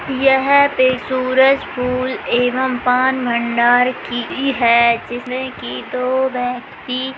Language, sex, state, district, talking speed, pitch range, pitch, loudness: Hindi, female, Bihar, Begusarai, 110 wpm, 245-265 Hz, 255 Hz, -16 LUFS